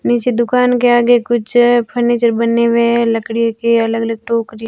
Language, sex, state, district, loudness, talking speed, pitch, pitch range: Hindi, female, Rajasthan, Barmer, -13 LUFS, 165 wpm, 235 Hz, 230-240 Hz